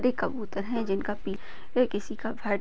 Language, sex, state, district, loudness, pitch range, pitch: Hindi, female, Maharashtra, Sindhudurg, -31 LUFS, 200-240 Hz, 210 Hz